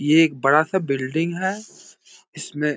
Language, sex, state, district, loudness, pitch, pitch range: Hindi, male, Bihar, Begusarai, -20 LUFS, 155 Hz, 150-175 Hz